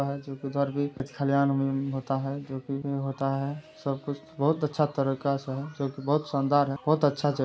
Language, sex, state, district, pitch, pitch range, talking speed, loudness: Hindi, male, Bihar, Jamui, 140 Hz, 135-145 Hz, 195 wpm, -28 LUFS